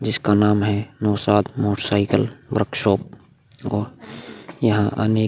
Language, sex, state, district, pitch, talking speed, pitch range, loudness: Hindi, male, Bihar, Vaishali, 105 Hz, 115 wpm, 105-120 Hz, -20 LUFS